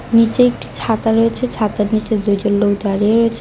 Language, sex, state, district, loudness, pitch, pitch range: Bengali, female, West Bengal, Cooch Behar, -16 LUFS, 215 Hz, 205-230 Hz